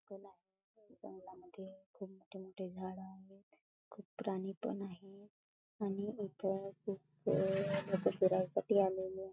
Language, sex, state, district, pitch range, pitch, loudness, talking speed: Marathi, female, Maharashtra, Chandrapur, 190-200 Hz, 195 Hz, -39 LUFS, 120 wpm